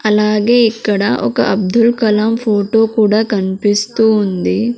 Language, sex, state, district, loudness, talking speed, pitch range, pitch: Telugu, female, Andhra Pradesh, Sri Satya Sai, -13 LUFS, 115 wpm, 205-225 Hz, 215 Hz